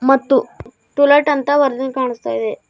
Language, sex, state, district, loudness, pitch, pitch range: Kannada, male, Karnataka, Bidar, -16 LUFS, 270 Hz, 260-285 Hz